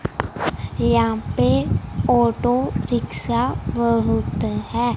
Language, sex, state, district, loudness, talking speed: Hindi, female, Punjab, Fazilka, -20 LUFS, 70 wpm